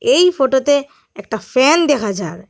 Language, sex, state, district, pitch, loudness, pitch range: Bengali, female, Assam, Hailakandi, 265 Hz, -15 LUFS, 205-290 Hz